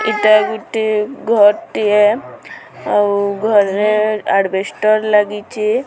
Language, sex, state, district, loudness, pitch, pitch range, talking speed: Odia, female, Odisha, Sambalpur, -15 LUFS, 210 Hz, 205-215 Hz, 70 wpm